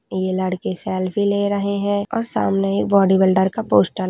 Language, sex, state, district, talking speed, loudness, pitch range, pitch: Hindi, female, Rajasthan, Nagaur, 205 wpm, -19 LUFS, 185-200 Hz, 190 Hz